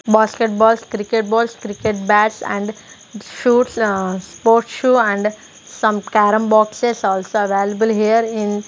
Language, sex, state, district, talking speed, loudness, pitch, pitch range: English, female, Punjab, Kapurthala, 140 wpm, -16 LUFS, 215 Hz, 210-225 Hz